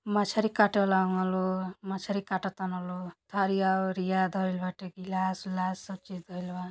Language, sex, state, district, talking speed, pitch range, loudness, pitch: Bhojpuri, female, Uttar Pradesh, Gorakhpur, 150 wpm, 185-195 Hz, -30 LUFS, 190 Hz